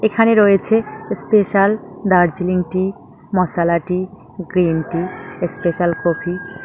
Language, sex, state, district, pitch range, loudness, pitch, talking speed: Bengali, female, West Bengal, Cooch Behar, 175-200 Hz, -17 LUFS, 185 Hz, 110 wpm